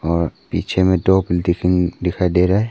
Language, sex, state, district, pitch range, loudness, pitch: Hindi, male, Arunachal Pradesh, Papum Pare, 85-95 Hz, -18 LUFS, 90 Hz